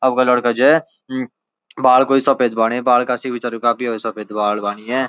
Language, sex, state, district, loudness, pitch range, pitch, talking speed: Garhwali, male, Uttarakhand, Uttarkashi, -17 LUFS, 115-130 Hz, 125 Hz, 200 wpm